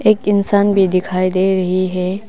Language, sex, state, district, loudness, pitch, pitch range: Hindi, female, Arunachal Pradesh, Papum Pare, -15 LUFS, 190 Hz, 185-200 Hz